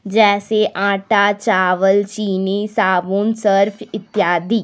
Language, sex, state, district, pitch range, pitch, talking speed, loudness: Hindi, female, Jharkhand, Deoghar, 195-215 Hz, 200 Hz, 90 wpm, -16 LUFS